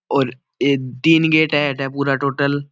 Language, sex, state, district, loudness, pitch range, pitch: Marwari, male, Rajasthan, Nagaur, -18 LUFS, 135-145 Hz, 140 Hz